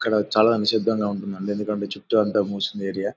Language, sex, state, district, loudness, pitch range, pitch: Telugu, male, Andhra Pradesh, Anantapur, -23 LUFS, 100-110 Hz, 105 Hz